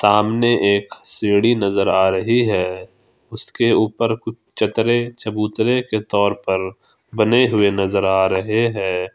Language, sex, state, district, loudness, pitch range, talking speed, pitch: Hindi, male, Jharkhand, Ranchi, -18 LUFS, 100-115 Hz, 140 wpm, 105 Hz